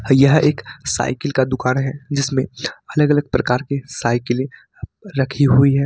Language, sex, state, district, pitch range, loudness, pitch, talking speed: Hindi, male, Jharkhand, Ranchi, 130-145 Hz, -18 LUFS, 135 Hz, 155 wpm